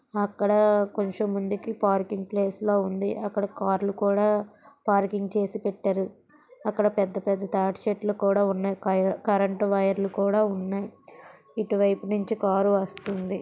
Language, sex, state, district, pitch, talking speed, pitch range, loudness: Telugu, female, Andhra Pradesh, Visakhapatnam, 200 Hz, 120 wpm, 195-210 Hz, -26 LUFS